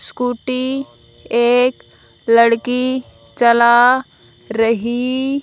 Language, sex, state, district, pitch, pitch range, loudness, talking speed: Hindi, female, Haryana, Jhajjar, 245 Hz, 235-255 Hz, -15 LUFS, 55 wpm